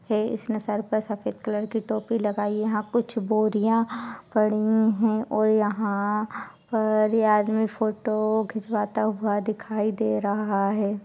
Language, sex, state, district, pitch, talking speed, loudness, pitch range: Hindi, female, Bihar, Purnia, 215 Hz, 150 wpm, -25 LUFS, 210-220 Hz